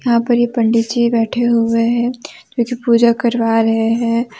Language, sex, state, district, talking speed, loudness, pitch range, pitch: Hindi, female, Jharkhand, Deoghar, 190 wpm, -15 LUFS, 230-240 Hz, 235 Hz